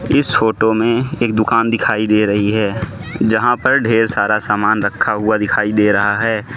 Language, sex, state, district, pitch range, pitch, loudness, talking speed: Hindi, male, Manipur, Imphal West, 105-115 Hz, 110 Hz, -15 LUFS, 185 wpm